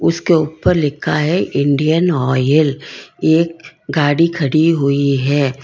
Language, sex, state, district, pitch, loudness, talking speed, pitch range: Hindi, female, Karnataka, Bangalore, 155 Hz, -15 LUFS, 115 wpm, 140-165 Hz